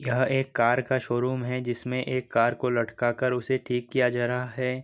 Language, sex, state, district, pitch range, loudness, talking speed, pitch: Hindi, male, Bihar, Gopalganj, 120-130 Hz, -26 LUFS, 235 wpm, 125 Hz